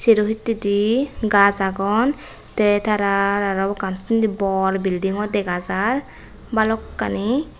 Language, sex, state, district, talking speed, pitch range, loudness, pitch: Chakma, female, Tripura, West Tripura, 110 wpm, 195-220 Hz, -20 LUFS, 205 Hz